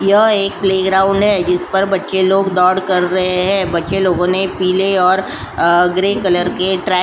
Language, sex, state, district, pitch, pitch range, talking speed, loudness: Hindi, female, Uttar Pradesh, Jyotiba Phule Nagar, 190 Hz, 180-195 Hz, 185 wpm, -14 LUFS